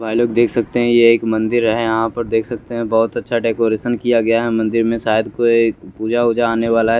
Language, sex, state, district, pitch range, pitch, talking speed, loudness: Hindi, male, Chandigarh, Chandigarh, 115-120 Hz, 115 Hz, 255 wpm, -16 LUFS